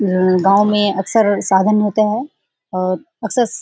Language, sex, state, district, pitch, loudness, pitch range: Hindi, female, Bihar, Kishanganj, 210 Hz, -16 LUFS, 190-220 Hz